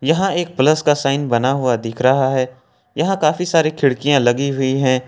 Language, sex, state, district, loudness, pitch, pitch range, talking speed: Hindi, male, Jharkhand, Ranchi, -17 LUFS, 135 Hz, 130-155 Hz, 200 wpm